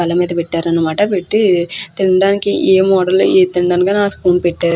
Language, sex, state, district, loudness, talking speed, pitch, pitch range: Telugu, female, Andhra Pradesh, Krishna, -13 LUFS, 150 wpm, 185 Hz, 175-195 Hz